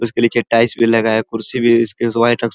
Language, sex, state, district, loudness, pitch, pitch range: Hindi, male, Uttar Pradesh, Ghazipur, -15 LUFS, 115 Hz, 115-120 Hz